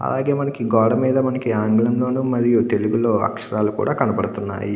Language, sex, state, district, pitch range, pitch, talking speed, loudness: Telugu, male, Andhra Pradesh, Krishna, 110-130 Hz, 115 Hz, 150 wpm, -19 LUFS